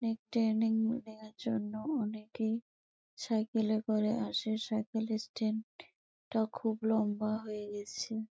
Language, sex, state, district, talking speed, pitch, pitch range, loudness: Bengali, female, West Bengal, Malda, 110 wpm, 220 Hz, 215-225 Hz, -35 LUFS